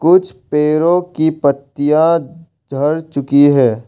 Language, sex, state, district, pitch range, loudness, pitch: Hindi, male, Arunachal Pradesh, Longding, 140-165 Hz, -14 LUFS, 150 Hz